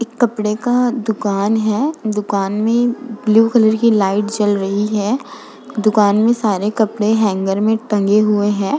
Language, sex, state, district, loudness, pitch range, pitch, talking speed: Hindi, female, Uttar Pradesh, Budaun, -16 LUFS, 205-230 Hz, 215 Hz, 155 wpm